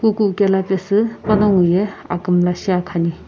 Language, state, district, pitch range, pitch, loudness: Sumi, Nagaland, Kohima, 180-210 Hz, 190 Hz, -17 LUFS